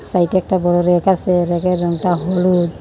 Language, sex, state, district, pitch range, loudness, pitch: Bengali, female, Tripura, Unakoti, 175-180 Hz, -16 LUFS, 180 Hz